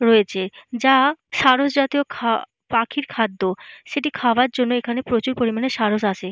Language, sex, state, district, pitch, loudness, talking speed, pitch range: Bengali, female, Jharkhand, Jamtara, 245 Hz, -20 LUFS, 140 wpm, 225-265 Hz